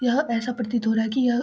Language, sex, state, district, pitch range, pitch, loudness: Hindi, female, Bihar, Samastipur, 230-250 Hz, 240 Hz, -24 LUFS